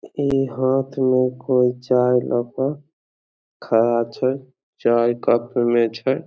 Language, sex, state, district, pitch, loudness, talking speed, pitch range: Maithili, male, Bihar, Samastipur, 125 Hz, -20 LUFS, 115 wpm, 120-130 Hz